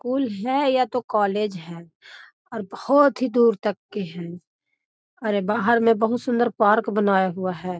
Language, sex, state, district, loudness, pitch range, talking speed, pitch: Magahi, female, Bihar, Gaya, -21 LUFS, 195-245 Hz, 175 wpm, 220 Hz